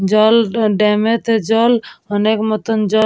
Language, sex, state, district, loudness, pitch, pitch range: Bengali, female, West Bengal, Purulia, -15 LUFS, 220 Hz, 210-225 Hz